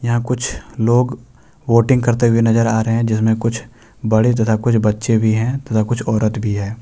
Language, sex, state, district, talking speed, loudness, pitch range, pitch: Hindi, male, Jharkhand, Deoghar, 200 wpm, -16 LUFS, 110-120 Hz, 115 Hz